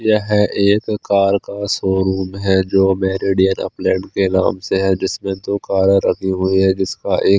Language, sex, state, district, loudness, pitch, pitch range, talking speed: Hindi, male, Chandigarh, Chandigarh, -17 LUFS, 95 Hz, 95-100 Hz, 170 wpm